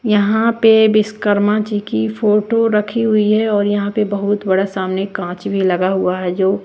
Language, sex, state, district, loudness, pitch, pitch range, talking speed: Hindi, female, Bihar, West Champaran, -16 LUFS, 205 Hz, 190-215 Hz, 190 wpm